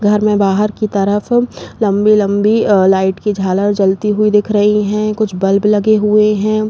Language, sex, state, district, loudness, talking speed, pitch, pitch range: Hindi, female, Uttar Pradesh, Jalaun, -13 LUFS, 190 wpm, 210 Hz, 200-215 Hz